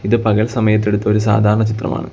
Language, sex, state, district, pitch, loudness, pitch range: Malayalam, male, Kerala, Kollam, 110 Hz, -15 LUFS, 105-110 Hz